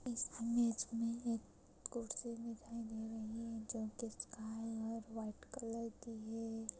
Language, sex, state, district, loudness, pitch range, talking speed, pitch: Hindi, female, Maharashtra, Sindhudurg, -44 LUFS, 225-230 Hz, 150 wpm, 230 Hz